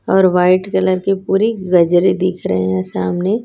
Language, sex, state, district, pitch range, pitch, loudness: Hindi, female, Chhattisgarh, Raipur, 175-195 Hz, 185 Hz, -15 LUFS